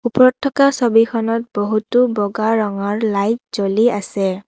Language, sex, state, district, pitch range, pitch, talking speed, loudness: Assamese, female, Assam, Kamrup Metropolitan, 205-240 Hz, 225 Hz, 120 wpm, -17 LUFS